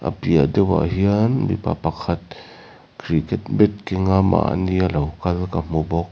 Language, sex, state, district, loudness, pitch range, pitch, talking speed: Mizo, male, Mizoram, Aizawl, -20 LUFS, 85-105 Hz, 95 Hz, 165 wpm